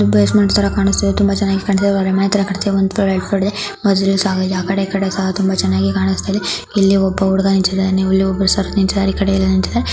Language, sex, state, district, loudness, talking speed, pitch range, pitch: Kannada, female, Karnataka, Belgaum, -15 LUFS, 180 wpm, 190-195 Hz, 195 Hz